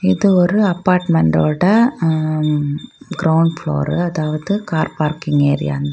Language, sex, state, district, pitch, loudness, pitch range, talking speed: Tamil, female, Tamil Nadu, Kanyakumari, 160 Hz, -16 LUFS, 150-180 Hz, 110 wpm